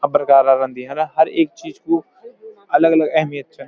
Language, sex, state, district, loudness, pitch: Garhwali, male, Uttarakhand, Uttarkashi, -17 LUFS, 160 Hz